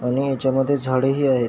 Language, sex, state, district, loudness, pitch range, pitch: Marathi, male, Maharashtra, Chandrapur, -20 LUFS, 130-135 Hz, 135 Hz